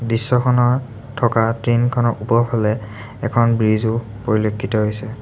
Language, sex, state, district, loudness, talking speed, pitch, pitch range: Assamese, male, Assam, Sonitpur, -18 LUFS, 115 wpm, 115 Hz, 110-120 Hz